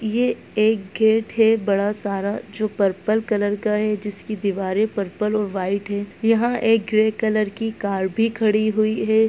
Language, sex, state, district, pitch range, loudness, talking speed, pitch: Hindi, male, Bihar, Muzaffarpur, 200-220 Hz, -21 LUFS, 175 wpm, 215 Hz